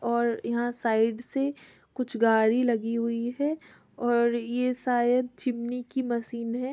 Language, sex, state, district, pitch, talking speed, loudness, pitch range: Hindi, female, Bihar, Muzaffarpur, 240 Hz, 145 wpm, -27 LUFS, 235-250 Hz